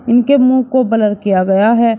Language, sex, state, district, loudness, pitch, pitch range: Hindi, male, Uttar Pradesh, Shamli, -12 LUFS, 230 Hz, 210-255 Hz